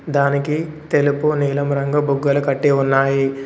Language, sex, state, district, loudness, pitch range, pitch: Telugu, male, Telangana, Komaram Bheem, -18 LUFS, 140-150 Hz, 140 Hz